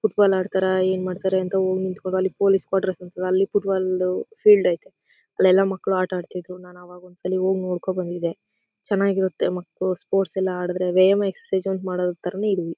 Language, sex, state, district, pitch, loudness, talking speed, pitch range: Kannada, female, Karnataka, Chamarajanagar, 185 Hz, -22 LUFS, 180 wpm, 180-195 Hz